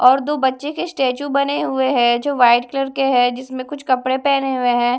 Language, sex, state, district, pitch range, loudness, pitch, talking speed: Hindi, female, Odisha, Malkangiri, 250-280 Hz, -18 LUFS, 265 Hz, 230 wpm